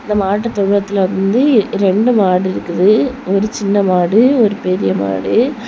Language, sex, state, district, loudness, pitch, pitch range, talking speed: Tamil, female, Tamil Nadu, Kanyakumari, -14 LUFS, 200 Hz, 185-225 Hz, 135 wpm